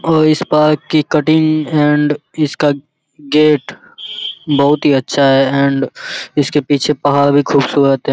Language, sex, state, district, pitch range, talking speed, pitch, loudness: Hindi, male, Bihar, Araria, 140-155 Hz, 140 wpm, 150 Hz, -13 LUFS